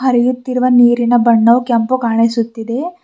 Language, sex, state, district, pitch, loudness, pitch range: Kannada, female, Karnataka, Bidar, 240 Hz, -13 LUFS, 230-255 Hz